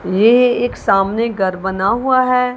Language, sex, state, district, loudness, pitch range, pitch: Hindi, female, Punjab, Kapurthala, -15 LUFS, 195-250 Hz, 230 Hz